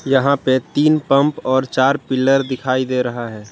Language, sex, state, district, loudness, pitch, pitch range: Hindi, male, Jharkhand, Garhwa, -17 LUFS, 130 Hz, 130-140 Hz